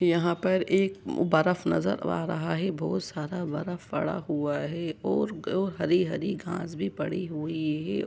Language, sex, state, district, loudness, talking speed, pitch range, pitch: Hindi, male, Jharkhand, Sahebganj, -29 LUFS, 170 wpm, 155-180 Hz, 170 Hz